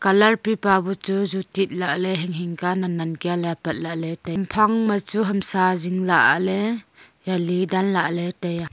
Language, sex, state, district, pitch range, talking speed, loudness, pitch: Wancho, female, Arunachal Pradesh, Longding, 175-195 Hz, 190 wpm, -22 LUFS, 185 Hz